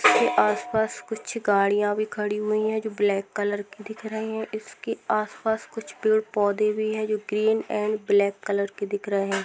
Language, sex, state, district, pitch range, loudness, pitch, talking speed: Hindi, female, Bihar, Sitamarhi, 205-220 Hz, -25 LUFS, 210 Hz, 190 wpm